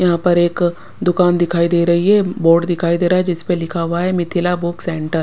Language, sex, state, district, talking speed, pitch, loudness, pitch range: Hindi, female, Punjab, Pathankot, 250 wpm, 175 Hz, -16 LUFS, 170-180 Hz